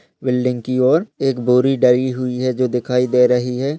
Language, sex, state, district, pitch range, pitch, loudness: Hindi, male, Uttar Pradesh, Hamirpur, 125-130 Hz, 125 Hz, -17 LUFS